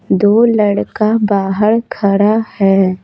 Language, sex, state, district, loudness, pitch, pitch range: Hindi, female, Bihar, Patna, -13 LUFS, 210 Hz, 200-220 Hz